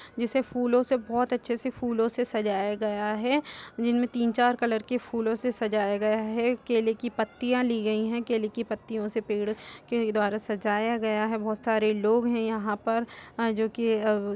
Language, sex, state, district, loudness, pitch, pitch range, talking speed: Hindi, female, Uttar Pradesh, Etah, -27 LUFS, 225 Hz, 215-240 Hz, 200 wpm